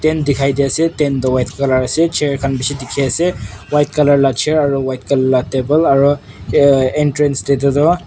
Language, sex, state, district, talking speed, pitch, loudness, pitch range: Nagamese, male, Nagaland, Kohima, 195 wpm, 140 Hz, -15 LUFS, 130-150 Hz